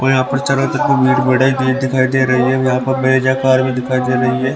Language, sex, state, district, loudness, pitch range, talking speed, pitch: Hindi, male, Haryana, Rohtak, -14 LUFS, 130-135 Hz, 235 wpm, 130 Hz